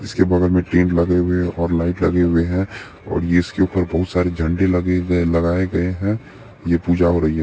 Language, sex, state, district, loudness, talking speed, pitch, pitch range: Maithili, male, Bihar, Supaul, -18 LUFS, 200 wpm, 90 Hz, 85-90 Hz